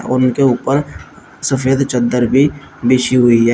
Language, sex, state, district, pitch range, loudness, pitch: Hindi, male, Uttar Pradesh, Shamli, 125-135 Hz, -14 LUFS, 130 Hz